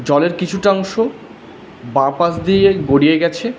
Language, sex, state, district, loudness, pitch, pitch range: Bengali, male, West Bengal, Alipurduar, -15 LUFS, 175 Hz, 145-195 Hz